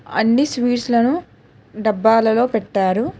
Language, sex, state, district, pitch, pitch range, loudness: Telugu, female, Telangana, Hyderabad, 225 Hz, 220-245 Hz, -17 LUFS